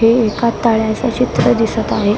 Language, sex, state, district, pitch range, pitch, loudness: Marathi, female, Maharashtra, Mumbai Suburban, 220-235 Hz, 225 Hz, -15 LUFS